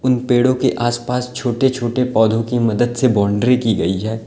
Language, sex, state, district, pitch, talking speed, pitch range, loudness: Hindi, male, Uttar Pradesh, Lalitpur, 120 Hz, 195 wpm, 110-125 Hz, -17 LUFS